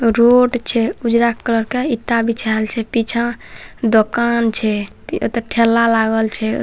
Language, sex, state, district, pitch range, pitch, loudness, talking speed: Maithili, male, Bihar, Saharsa, 225-235 Hz, 230 Hz, -16 LUFS, 135 wpm